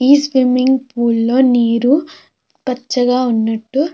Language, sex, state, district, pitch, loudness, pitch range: Telugu, female, Andhra Pradesh, Krishna, 255 Hz, -14 LUFS, 240-270 Hz